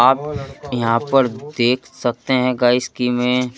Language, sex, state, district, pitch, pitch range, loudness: Hindi, male, Madhya Pradesh, Bhopal, 125 Hz, 120-135 Hz, -18 LUFS